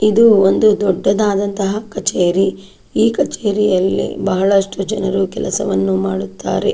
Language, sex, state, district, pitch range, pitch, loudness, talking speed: Kannada, female, Karnataka, Dakshina Kannada, 190-210 Hz, 195 Hz, -16 LUFS, 100 wpm